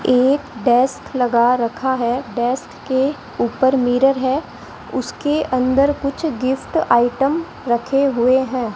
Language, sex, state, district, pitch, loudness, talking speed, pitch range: Hindi, female, Rajasthan, Bikaner, 260 Hz, -18 LUFS, 125 wpm, 245-275 Hz